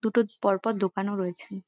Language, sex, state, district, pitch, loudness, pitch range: Bengali, female, West Bengal, Kolkata, 200 Hz, -28 LUFS, 195-220 Hz